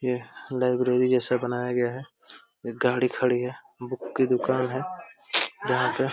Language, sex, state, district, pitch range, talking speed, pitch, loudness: Hindi, male, Uttar Pradesh, Deoria, 125-130 Hz, 165 wpm, 125 Hz, -26 LUFS